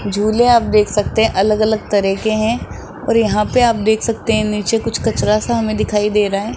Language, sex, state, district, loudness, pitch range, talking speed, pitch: Hindi, male, Rajasthan, Jaipur, -15 LUFS, 210-225 Hz, 235 wpm, 215 Hz